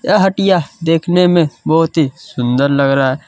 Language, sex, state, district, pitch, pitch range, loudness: Hindi, male, Chhattisgarh, Kabirdham, 160 Hz, 140-175 Hz, -14 LUFS